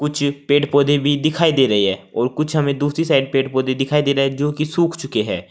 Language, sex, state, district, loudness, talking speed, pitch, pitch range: Hindi, male, Uttar Pradesh, Saharanpur, -18 LUFS, 260 wpm, 145 Hz, 135-150 Hz